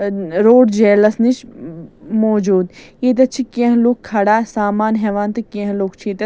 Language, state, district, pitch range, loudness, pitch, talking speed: Kashmiri, Punjab, Kapurthala, 205-240 Hz, -15 LUFS, 215 Hz, 180 wpm